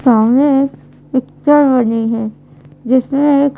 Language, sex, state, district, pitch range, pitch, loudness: Hindi, female, Madhya Pradesh, Bhopal, 225-280 Hz, 260 Hz, -13 LUFS